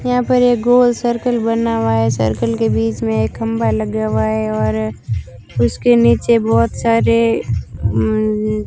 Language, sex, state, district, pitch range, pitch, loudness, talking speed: Hindi, female, Rajasthan, Bikaner, 110-120 Hz, 115 Hz, -16 LUFS, 165 wpm